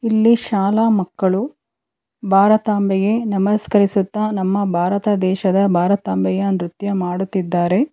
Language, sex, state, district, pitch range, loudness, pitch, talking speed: Kannada, female, Karnataka, Bangalore, 190-210 Hz, -17 LUFS, 195 Hz, 85 wpm